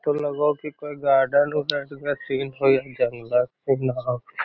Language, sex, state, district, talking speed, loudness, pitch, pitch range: Magahi, male, Bihar, Lakhisarai, 190 wpm, -23 LUFS, 135 Hz, 130-145 Hz